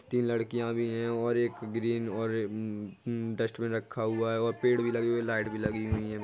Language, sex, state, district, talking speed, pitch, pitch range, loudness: Hindi, male, Bihar, Jahanabad, 200 wpm, 115 Hz, 110-115 Hz, -31 LUFS